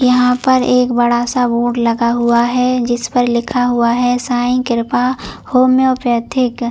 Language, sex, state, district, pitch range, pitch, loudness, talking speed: Hindi, female, Chhattisgarh, Bilaspur, 235-250 Hz, 245 Hz, -14 LUFS, 160 wpm